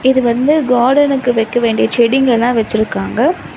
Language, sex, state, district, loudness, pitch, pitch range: Tamil, female, Tamil Nadu, Chennai, -13 LUFS, 245 Hz, 230-260 Hz